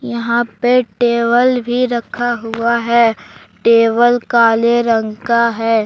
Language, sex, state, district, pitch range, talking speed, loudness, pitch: Hindi, male, Jharkhand, Deoghar, 230-240 Hz, 125 wpm, -14 LUFS, 235 Hz